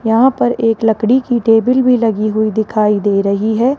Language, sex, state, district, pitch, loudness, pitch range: Hindi, female, Rajasthan, Jaipur, 225 Hz, -13 LUFS, 215-245 Hz